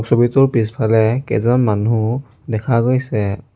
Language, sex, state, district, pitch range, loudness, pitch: Assamese, male, Assam, Sonitpur, 110-125 Hz, -16 LUFS, 115 Hz